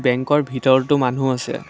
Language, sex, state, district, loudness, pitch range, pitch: Assamese, female, Assam, Kamrup Metropolitan, -18 LUFS, 125-140 Hz, 130 Hz